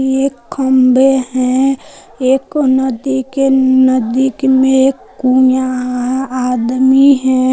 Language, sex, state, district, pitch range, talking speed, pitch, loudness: Hindi, female, Jharkhand, Palamu, 255-265 Hz, 90 wpm, 260 Hz, -12 LUFS